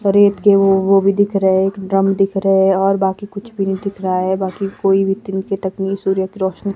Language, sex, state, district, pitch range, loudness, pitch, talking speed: Hindi, female, Himachal Pradesh, Shimla, 190-195 Hz, -16 LUFS, 195 Hz, 275 wpm